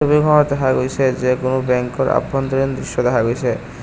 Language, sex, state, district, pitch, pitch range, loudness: Assamese, male, Assam, Kamrup Metropolitan, 130 Hz, 125-135 Hz, -17 LUFS